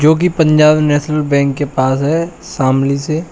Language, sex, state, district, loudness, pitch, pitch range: Hindi, male, Uttar Pradesh, Shamli, -13 LUFS, 150 Hz, 140-160 Hz